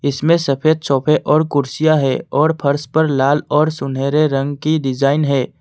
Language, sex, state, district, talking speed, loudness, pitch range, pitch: Hindi, male, Assam, Kamrup Metropolitan, 170 wpm, -16 LUFS, 135-155 Hz, 145 Hz